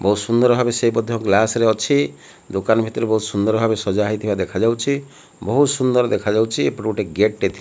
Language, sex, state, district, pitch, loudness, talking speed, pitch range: Odia, male, Odisha, Malkangiri, 110 Hz, -19 LUFS, 195 wpm, 105-120 Hz